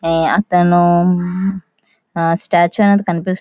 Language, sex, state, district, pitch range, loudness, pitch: Telugu, female, Andhra Pradesh, Visakhapatnam, 170-190 Hz, -14 LUFS, 175 Hz